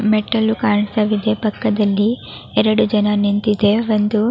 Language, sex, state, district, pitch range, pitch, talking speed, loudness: Kannada, female, Karnataka, Raichur, 205-215 Hz, 210 Hz, 110 wpm, -17 LUFS